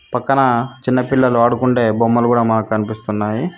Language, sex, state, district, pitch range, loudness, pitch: Telugu, female, Telangana, Mahabubabad, 110-125 Hz, -16 LUFS, 120 Hz